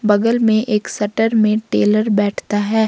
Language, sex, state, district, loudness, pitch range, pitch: Hindi, female, Jharkhand, Ranchi, -16 LUFS, 205-220 Hz, 215 Hz